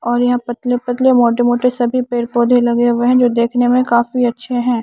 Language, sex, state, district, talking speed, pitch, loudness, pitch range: Hindi, female, Haryana, Charkhi Dadri, 225 wpm, 245 Hz, -14 LUFS, 240-245 Hz